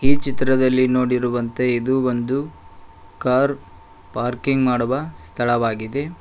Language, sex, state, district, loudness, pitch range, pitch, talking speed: Kannada, male, Karnataka, Koppal, -20 LUFS, 115-130 Hz, 125 Hz, 85 wpm